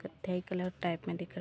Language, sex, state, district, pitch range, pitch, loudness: Hindi, female, Jharkhand, Jamtara, 175-185 Hz, 180 Hz, -37 LUFS